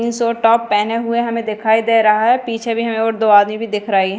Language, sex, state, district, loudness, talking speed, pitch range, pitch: Hindi, female, Madhya Pradesh, Dhar, -15 LUFS, 285 wpm, 215-230 Hz, 225 Hz